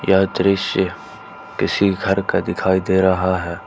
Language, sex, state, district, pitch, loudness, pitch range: Hindi, male, Jharkhand, Ranchi, 95 Hz, -18 LUFS, 95-100 Hz